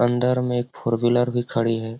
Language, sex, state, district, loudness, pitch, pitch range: Hindi, male, Bihar, Lakhisarai, -22 LUFS, 120 Hz, 115-125 Hz